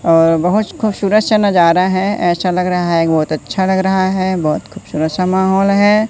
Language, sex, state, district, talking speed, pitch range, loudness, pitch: Hindi, male, Madhya Pradesh, Katni, 195 wpm, 170-195 Hz, -14 LUFS, 185 Hz